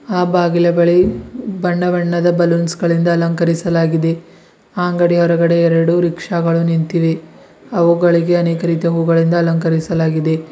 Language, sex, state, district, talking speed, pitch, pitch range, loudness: Kannada, male, Karnataka, Bidar, 110 wpm, 170 Hz, 165-175 Hz, -15 LUFS